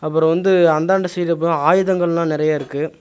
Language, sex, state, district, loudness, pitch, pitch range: Tamil, male, Tamil Nadu, Nilgiris, -17 LUFS, 165 Hz, 155-180 Hz